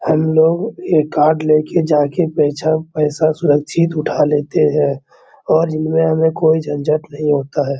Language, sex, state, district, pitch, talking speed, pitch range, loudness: Hindi, male, Bihar, Araria, 155 Hz, 160 wpm, 150-160 Hz, -15 LUFS